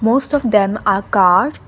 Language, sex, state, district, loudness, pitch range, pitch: English, female, Assam, Kamrup Metropolitan, -15 LUFS, 195-250 Hz, 210 Hz